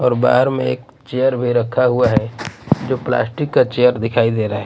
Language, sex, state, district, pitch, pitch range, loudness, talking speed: Hindi, male, Odisha, Nuapada, 125 Hz, 120-130 Hz, -17 LUFS, 205 wpm